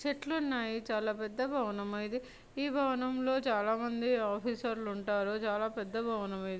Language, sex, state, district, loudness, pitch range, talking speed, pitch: Telugu, male, Telangana, Nalgonda, -34 LUFS, 210-255 Hz, 145 wpm, 225 Hz